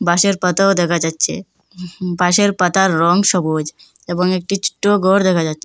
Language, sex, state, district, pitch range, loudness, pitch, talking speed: Bengali, female, Assam, Hailakandi, 175-195 Hz, -15 LUFS, 180 Hz, 150 wpm